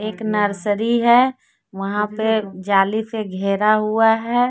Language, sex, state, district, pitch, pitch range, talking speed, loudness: Hindi, female, Jharkhand, Deoghar, 215 Hz, 205-225 Hz, 135 wpm, -19 LUFS